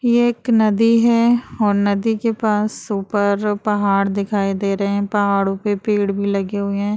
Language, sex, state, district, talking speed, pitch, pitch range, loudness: Hindi, female, Uttar Pradesh, Jalaun, 180 wpm, 205 Hz, 200-220 Hz, -18 LUFS